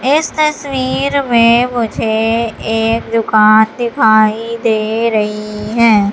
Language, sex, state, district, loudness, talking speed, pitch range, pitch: Hindi, female, Madhya Pradesh, Katni, -13 LUFS, 100 wpm, 220-245 Hz, 230 Hz